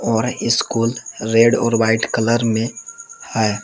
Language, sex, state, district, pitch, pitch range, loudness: Hindi, male, Jharkhand, Palamu, 115 Hz, 110-120 Hz, -18 LUFS